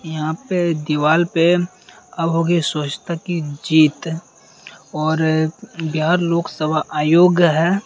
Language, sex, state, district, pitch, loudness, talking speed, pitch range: Hindi, male, Bihar, Purnia, 160 Hz, -18 LUFS, 120 wpm, 155-170 Hz